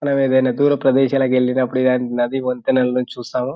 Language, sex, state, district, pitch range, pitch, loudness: Telugu, male, Telangana, Nalgonda, 125-135 Hz, 130 Hz, -18 LUFS